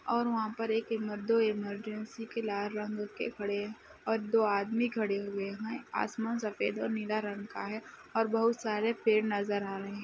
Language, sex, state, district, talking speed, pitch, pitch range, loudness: Hindi, female, Uttar Pradesh, Budaun, 195 wpm, 215 Hz, 205-225 Hz, -33 LUFS